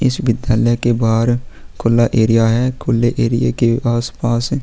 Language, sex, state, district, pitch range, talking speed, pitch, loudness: Hindi, male, Chhattisgarh, Sukma, 115-120 Hz, 140 wpm, 120 Hz, -16 LUFS